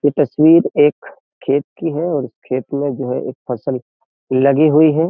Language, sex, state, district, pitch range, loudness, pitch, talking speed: Hindi, male, Uttar Pradesh, Jyotiba Phule Nagar, 140-160 Hz, -16 LUFS, 150 Hz, 200 wpm